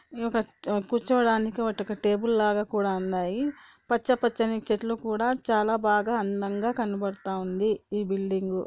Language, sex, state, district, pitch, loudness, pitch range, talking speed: Telugu, female, Andhra Pradesh, Anantapur, 215 Hz, -27 LUFS, 200-230 Hz, 120 wpm